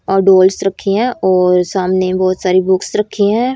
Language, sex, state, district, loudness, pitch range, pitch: Hindi, female, Haryana, Rohtak, -13 LUFS, 185-205 Hz, 190 Hz